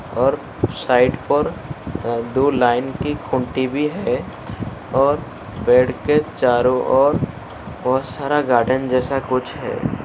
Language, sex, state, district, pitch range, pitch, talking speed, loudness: Hindi, male, Uttar Pradesh, Muzaffarnagar, 125-140 Hz, 130 Hz, 125 wpm, -19 LUFS